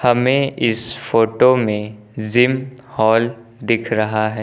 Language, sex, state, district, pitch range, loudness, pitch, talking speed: Hindi, male, Uttar Pradesh, Lucknow, 110-125 Hz, -17 LUFS, 115 Hz, 120 wpm